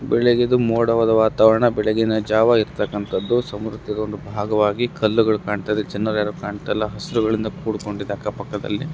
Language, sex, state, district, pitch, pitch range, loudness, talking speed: Kannada, male, Karnataka, Gulbarga, 110 Hz, 105-115 Hz, -20 LUFS, 125 wpm